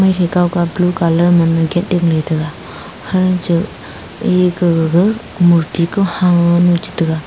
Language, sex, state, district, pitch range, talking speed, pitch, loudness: Wancho, female, Arunachal Pradesh, Longding, 165-180 Hz, 165 wpm, 175 Hz, -14 LUFS